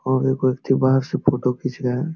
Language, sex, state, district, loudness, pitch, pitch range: Hindi, male, Jharkhand, Sahebganj, -20 LUFS, 130 Hz, 130-135 Hz